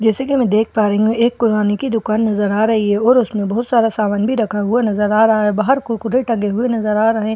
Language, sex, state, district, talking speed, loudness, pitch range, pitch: Hindi, female, Bihar, Katihar, 300 wpm, -16 LUFS, 210-235 Hz, 220 Hz